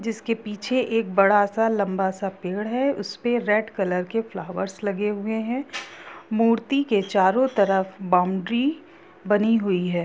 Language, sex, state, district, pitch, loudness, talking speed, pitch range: Hindi, female, Jharkhand, Jamtara, 210 Hz, -23 LUFS, 155 wpm, 195-230 Hz